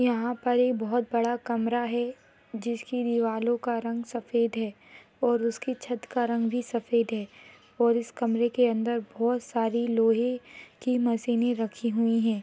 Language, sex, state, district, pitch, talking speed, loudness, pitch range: Hindi, female, Maharashtra, Solapur, 235 Hz, 160 wpm, -28 LUFS, 230-245 Hz